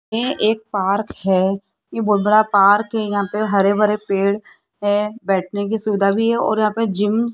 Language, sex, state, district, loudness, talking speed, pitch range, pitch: Hindi, female, Rajasthan, Jaipur, -18 LUFS, 190 wpm, 200-220 Hz, 210 Hz